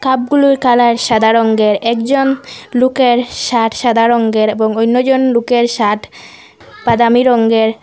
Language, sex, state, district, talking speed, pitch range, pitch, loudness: Bengali, female, Assam, Hailakandi, 115 wpm, 225-255 Hz, 235 Hz, -12 LUFS